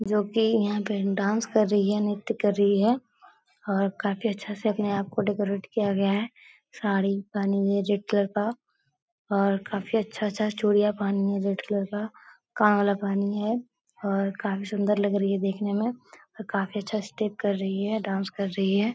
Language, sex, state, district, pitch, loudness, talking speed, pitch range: Hindi, female, Bihar, Supaul, 205 Hz, -26 LUFS, 200 wpm, 200-215 Hz